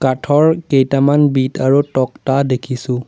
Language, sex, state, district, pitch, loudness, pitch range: Assamese, male, Assam, Sonitpur, 135 Hz, -15 LUFS, 130-145 Hz